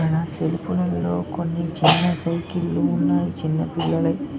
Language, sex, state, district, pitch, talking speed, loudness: Telugu, male, Telangana, Mahabubabad, 160 Hz, 110 wpm, -22 LUFS